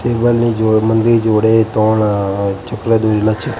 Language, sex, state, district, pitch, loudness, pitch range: Gujarati, male, Gujarat, Gandhinagar, 110 Hz, -14 LUFS, 110-115 Hz